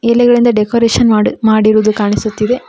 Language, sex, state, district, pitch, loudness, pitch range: Kannada, female, Karnataka, Koppal, 220 Hz, -11 LUFS, 215-240 Hz